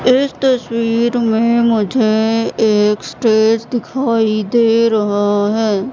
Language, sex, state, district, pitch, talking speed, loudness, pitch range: Hindi, female, Madhya Pradesh, Katni, 225 Hz, 100 wpm, -14 LUFS, 215-235 Hz